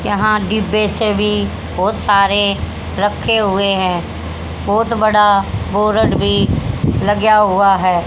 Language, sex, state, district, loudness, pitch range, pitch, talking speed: Hindi, female, Haryana, Rohtak, -14 LUFS, 195-215 Hz, 205 Hz, 120 wpm